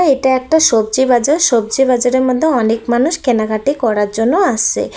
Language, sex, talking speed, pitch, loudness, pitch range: Bengali, female, 155 wpm, 250 Hz, -13 LUFS, 225-270 Hz